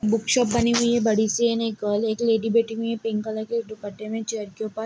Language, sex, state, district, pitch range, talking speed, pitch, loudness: Hindi, female, Chhattisgarh, Sarguja, 215-230 Hz, 235 wpm, 225 Hz, -23 LUFS